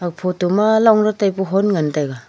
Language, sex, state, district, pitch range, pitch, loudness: Wancho, female, Arunachal Pradesh, Longding, 175-210 Hz, 190 Hz, -17 LUFS